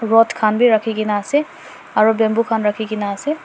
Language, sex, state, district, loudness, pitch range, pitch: Nagamese, female, Nagaland, Dimapur, -17 LUFS, 215-240 Hz, 225 Hz